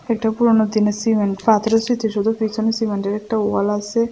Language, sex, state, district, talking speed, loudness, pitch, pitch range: Bengali, female, Tripura, West Tripura, 175 wpm, -19 LUFS, 220 Hz, 210-225 Hz